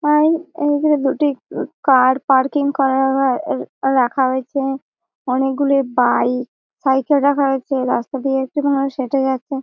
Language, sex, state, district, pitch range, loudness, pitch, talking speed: Bengali, female, West Bengal, Malda, 265-285 Hz, -17 LUFS, 270 Hz, 120 wpm